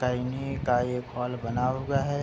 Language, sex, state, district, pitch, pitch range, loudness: Hindi, male, Bihar, Saharsa, 125 Hz, 125-135 Hz, -29 LUFS